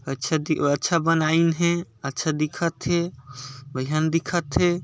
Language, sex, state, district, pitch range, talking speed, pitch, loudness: Chhattisgarhi, male, Chhattisgarh, Sarguja, 140-170 Hz, 150 wpm, 160 Hz, -23 LUFS